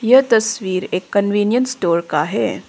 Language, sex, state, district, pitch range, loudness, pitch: Hindi, female, Arunachal Pradesh, Papum Pare, 185-230 Hz, -17 LUFS, 205 Hz